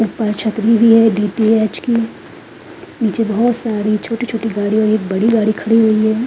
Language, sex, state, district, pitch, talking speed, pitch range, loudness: Hindi, female, Uttarakhand, Tehri Garhwal, 220 Hz, 170 wpm, 215-230 Hz, -15 LUFS